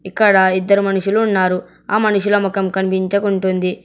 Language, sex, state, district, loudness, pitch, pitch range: Telugu, male, Telangana, Hyderabad, -16 LUFS, 195 Hz, 190-205 Hz